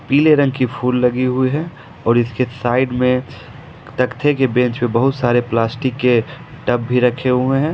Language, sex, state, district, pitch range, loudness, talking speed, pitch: Hindi, male, Jharkhand, Ranchi, 120-135 Hz, -17 LUFS, 185 wpm, 125 Hz